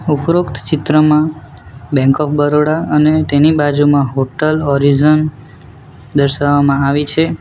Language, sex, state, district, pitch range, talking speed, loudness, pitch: Gujarati, male, Gujarat, Valsad, 140-155 Hz, 105 wpm, -13 LUFS, 145 Hz